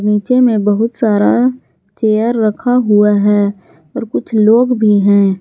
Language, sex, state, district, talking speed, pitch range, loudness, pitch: Hindi, female, Jharkhand, Garhwa, 145 wpm, 205-235 Hz, -12 LUFS, 215 Hz